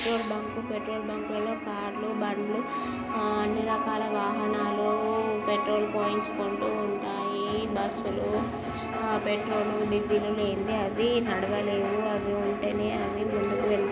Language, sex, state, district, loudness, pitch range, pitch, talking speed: Telugu, female, Andhra Pradesh, Guntur, -29 LUFS, 210-220 Hz, 215 Hz, 110 wpm